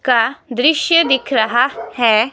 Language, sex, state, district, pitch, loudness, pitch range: Hindi, female, Himachal Pradesh, Shimla, 255 Hz, -15 LUFS, 235-295 Hz